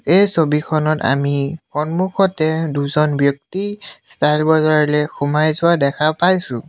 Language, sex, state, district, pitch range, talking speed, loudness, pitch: Assamese, male, Assam, Sonitpur, 145-170 Hz, 110 wpm, -17 LUFS, 155 Hz